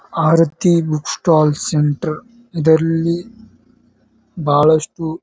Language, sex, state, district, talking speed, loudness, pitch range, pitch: Kannada, male, Karnataka, Bijapur, 70 wpm, -16 LUFS, 155-170 Hz, 160 Hz